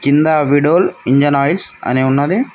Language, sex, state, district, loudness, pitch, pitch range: Telugu, male, Telangana, Mahabubabad, -13 LUFS, 145 Hz, 140-170 Hz